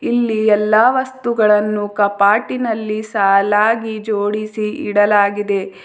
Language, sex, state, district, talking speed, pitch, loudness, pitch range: Kannada, female, Karnataka, Bidar, 70 wpm, 210 Hz, -16 LUFS, 205-220 Hz